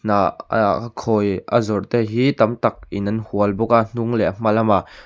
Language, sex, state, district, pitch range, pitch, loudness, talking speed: Mizo, male, Mizoram, Aizawl, 100-115 Hz, 110 Hz, -19 LUFS, 200 wpm